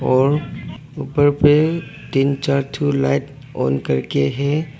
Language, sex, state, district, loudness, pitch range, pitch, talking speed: Hindi, male, Arunachal Pradesh, Papum Pare, -18 LUFS, 130-145 Hz, 140 Hz, 125 wpm